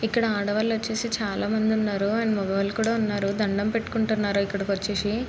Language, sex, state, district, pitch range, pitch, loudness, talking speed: Telugu, female, Andhra Pradesh, Srikakulam, 200-225 Hz, 210 Hz, -25 LUFS, 160 wpm